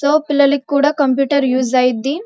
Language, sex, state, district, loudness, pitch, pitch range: Telugu, female, Andhra Pradesh, Krishna, -15 LUFS, 280 Hz, 260-285 Hz